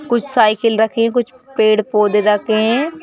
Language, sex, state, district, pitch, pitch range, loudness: Hindi, female, Madhya Pradesh, Bhopal, 225 Hz, 215-245 Hz, -15 LUFS